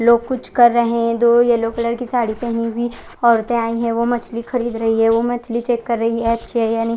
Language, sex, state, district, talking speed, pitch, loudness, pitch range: Hindi, female, Odisha, Khordha, 240 wpm, 235 Hz, -18 LUFS, 230-240 Hz